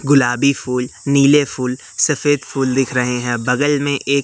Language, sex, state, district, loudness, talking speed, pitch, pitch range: Hindi, male, Madhya Pradesh, Katni, -16 LUFS, 170 wpm, 135 Hz, 125-140 Hz